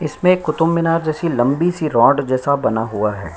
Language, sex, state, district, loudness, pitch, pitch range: Hindi, male, Chhattisgarh, Sukma, -17 LUFS, 155 Hz, 120-165 Hz